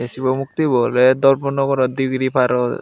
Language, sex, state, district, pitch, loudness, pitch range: Chakma, male, Tripura, Unakoti, 130 Hz, -17 LUFS, 125-135 Hz